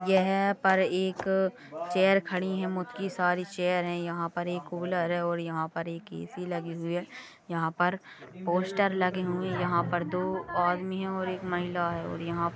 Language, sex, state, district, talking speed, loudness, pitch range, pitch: Hindi, male, Chhattisgarh, Raigarh, 190 wpm, -30 LUFS, 170-185 Hz, 180 Hz